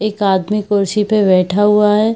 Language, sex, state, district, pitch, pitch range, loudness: Hindi, female, Bihar, Purnia, 210 Hz, 195-210 Hz, -14 LUFS